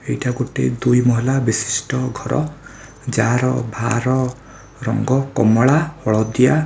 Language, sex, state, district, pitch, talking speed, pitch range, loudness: Odia, male, Odisha, Khordha, 125 Hz, 110 wpm, 115-130 Hz, -18 LUFS